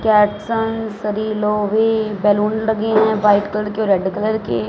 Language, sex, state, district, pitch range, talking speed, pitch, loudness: Hindi, female, Punjab, Fazilka, 205-220 Hz, 165 wpm, 210 Hz, -17 LUFS